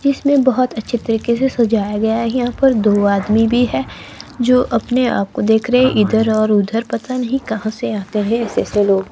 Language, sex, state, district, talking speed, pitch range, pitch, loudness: Hindi, female, Himachal Pradesh, Shimla, 215 wpm, 210-250 Hz, 225 Hz, -16 LUFS